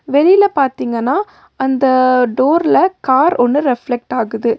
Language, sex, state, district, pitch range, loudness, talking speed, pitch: Tamil, female, Tamil Nadu, Nilgiris, 245-330 Hz, -14 LUFS, 105 wpm, 265 Hz